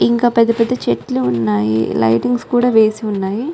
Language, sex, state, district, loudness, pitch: Telugu, female, Telangana, Nalgonda, -15 LUFS, 205 Hz